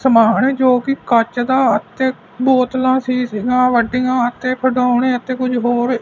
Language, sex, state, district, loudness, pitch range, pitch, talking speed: Punjabi, male, Punjab, Fazilka, -16 LUFS, 245-260 Hz, 250 Hz, 140 wpm